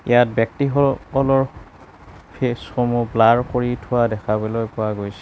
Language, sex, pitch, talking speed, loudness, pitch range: Assamese, male, 120 Hz, 115 wpm, -20 LUFS, 110-125 Hz